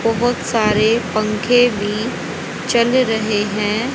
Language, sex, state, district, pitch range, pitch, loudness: Hindi, female, Haryana, Rohtak, 210-240 Hz, 225 Hz, -17 LUFS